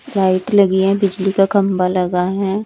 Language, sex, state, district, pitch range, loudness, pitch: Hindi, male, Chandigarh, Chandigarh, 185-200 Hz, -16 LUFS, 195 Hz